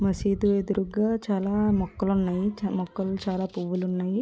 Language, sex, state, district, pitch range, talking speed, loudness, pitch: Telugu, female, Andhra Pradesh, Krishna, 185-205 Hz, 115 wpm, -26 LUFS, 195 Hz